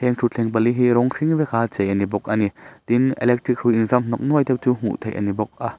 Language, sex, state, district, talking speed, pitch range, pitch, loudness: Mizo, male, Mizoram, Aizawl, 290 wpm, 110-125 Hz, 120 Hz, -20 LUFS